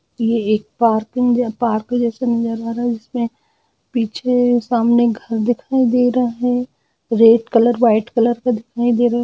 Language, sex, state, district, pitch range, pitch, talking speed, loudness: Hindi, female, Chhattisgarh, Rajnandgaon, 230-245 Hz, 235 Hz, 160 wpm, -17 LUFS